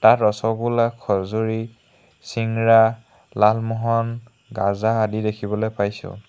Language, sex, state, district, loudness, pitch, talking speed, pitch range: Assamese, male, Assam, Hailakandi, -21 LUFS, 115 Hz, 85 wpm, 105-115 Hz